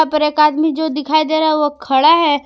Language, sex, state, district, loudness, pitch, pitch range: Hindi, female, Jharkhand, Palamu, -14 LUFS, 305 Hz, 300-315 Hz